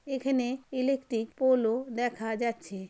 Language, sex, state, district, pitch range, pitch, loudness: Bengali, female, West Bengal, Malda, 225-265 Hz, 245 Hz, -30 LUFS